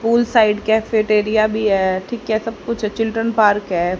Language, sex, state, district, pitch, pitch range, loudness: Hindi, male, Haryana, Rohtak, 220 Hz, 210-225 Hz, -17 LUFS